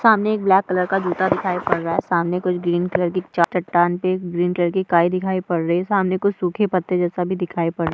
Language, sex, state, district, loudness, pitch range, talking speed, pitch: Hindi, female, Andhra Pradesh, Guntur, -20 LUFS, 175-185 Hz, 255 wpm, 180 Hz